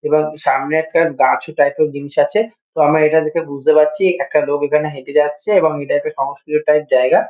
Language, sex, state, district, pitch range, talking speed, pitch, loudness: Bengali, male, West Bengal, Kolkata, 145-155 Hz, 205 wpm, 150 Hz, -16 LUFS